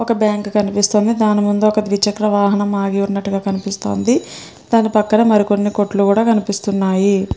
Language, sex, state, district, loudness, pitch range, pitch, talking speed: Telugu, female, Andhra Pradesh, Srikakulam, -16 LUFS, 200-215 Hz, 205 Hz, 145 wpm